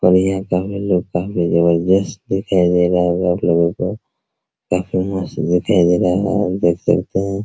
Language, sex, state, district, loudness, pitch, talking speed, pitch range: Hindi, male, Bihar, Araria, -17 LUFS, 90 Hz, 175 wpm, 90-95 Hz